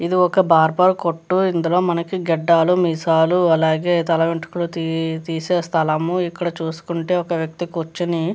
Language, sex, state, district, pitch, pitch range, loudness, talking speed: Telugu, female, Andhra Pradesh, Chittoor, 170 Hz, 165-180 Hz, -19 LUFS, 150 wpm